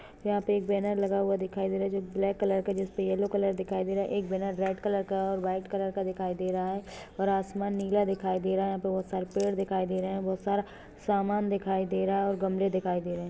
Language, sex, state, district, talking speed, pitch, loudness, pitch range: Hindi, female, Jharkhand, Jamtara, 270 wpm, 195 Hz, -30 LUFS, 190-200 Hz